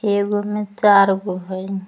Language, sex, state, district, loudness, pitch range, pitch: Magahi, female, Jharkhand, Palamu, -18 LUFS, 190-205 Hz, 200 Hz